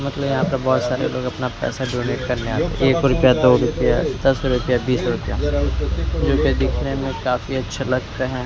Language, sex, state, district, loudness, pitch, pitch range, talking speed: Hindi, male, Maharashtra, Mumbai Suburban, -20 LUFS, 125 Hz, 105-130 Hz, 205 wpm